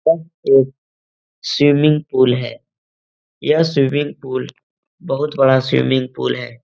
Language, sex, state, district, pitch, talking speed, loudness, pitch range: Hindi, male, Uttar Pradesh, Etah, 135 Hz, 115 wpm, -16 LUFS, 120-150 Hz